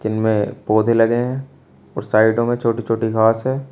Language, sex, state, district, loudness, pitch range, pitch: Hindi, male, Uttar Pradesh, Shamli, -18 LUFS, 110-120 Hz, 115 Hz